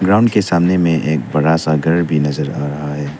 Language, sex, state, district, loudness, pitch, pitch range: Hindi, male, Arunachal Pradesh, Lower Dibang Valley, -15 LUFS, 80 Hz, 75-85 Hz